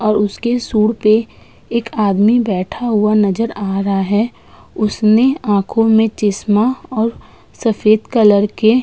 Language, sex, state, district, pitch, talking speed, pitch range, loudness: Hindi, female, Uttar Pradesh, Budaun, 215 Hz, 145 wpm, 205-230 Hz, -15 LUFS